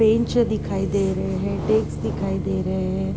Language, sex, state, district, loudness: Hindi, female, Uttar Pradesh, Deoria, -23 LUFS